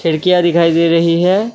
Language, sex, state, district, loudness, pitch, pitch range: Hindi, male, Assam, Kamrup Metropolitan, -12 LUFS, 170 Hz, 165-180 Hz